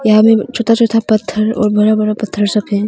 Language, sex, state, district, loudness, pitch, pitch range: Hindi, female, Arunachal Pradesh, Longding, -13 LUFS, 215 Hz, 210-225 Hz